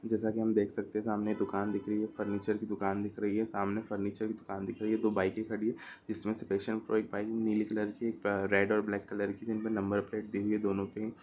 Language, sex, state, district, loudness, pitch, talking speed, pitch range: Hindi, male, Uttar Pradesh, Deoria, -34 LUFS, 105 Hz, 290 wpm, 100-110 Hz